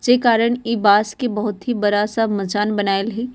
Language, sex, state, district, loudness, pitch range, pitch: Bajjika, female, Bihar, Vaishali, -18 LUFS, 205-235 Hz, 215 Hz